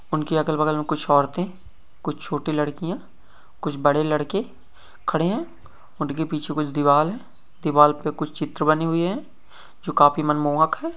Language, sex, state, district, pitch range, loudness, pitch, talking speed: Hindi, male, Rajasthan, Churu, 150-160 Hz, -22 LUFS, 155 Hz, 160 wpm